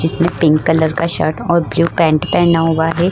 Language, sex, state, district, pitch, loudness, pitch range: Hindi, female, Uttar Pradesh, Muzaffarnagar, 165 Hz, -14 LUFS, 160-170 Hz